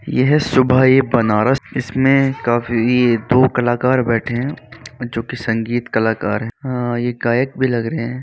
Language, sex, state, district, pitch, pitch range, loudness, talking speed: Hindi, male, Uttar Pradesh, Varanasi, 125 Hz, 115-130 Hz, -17 LUFS, 160 wpm